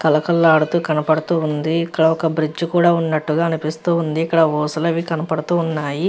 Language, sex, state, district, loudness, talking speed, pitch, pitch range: Telugu, female, Andhra Pradesh, Visakhapatnam, -18 LUFS, 140 wpm, 160 Hz, 155-170 Hz